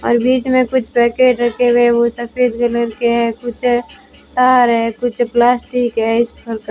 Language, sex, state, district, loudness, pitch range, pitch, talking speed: Hindi, female, Rajasthan, Bikaner, -15 LUFS, 235-250 Hz, 240 Hz, 190 wpm